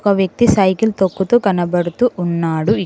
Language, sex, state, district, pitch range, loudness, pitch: Telugu, female, Telangana, Mahabubabad, 175-220 Hz, -16 LUFS, 190 Hz